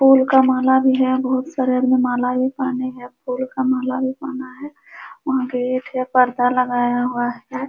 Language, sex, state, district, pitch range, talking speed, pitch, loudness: Hindi, female, Uttar Pradesh, Jalaun, 250-265 Hz, 185 wpm, 255 Hz, -19 LUFS